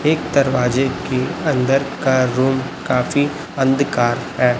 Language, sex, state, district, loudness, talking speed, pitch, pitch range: Hindi, male, Chhattisgarh, Raipur, -18 LUFS, 120 wpm, 135 Hz, 125-140 Hz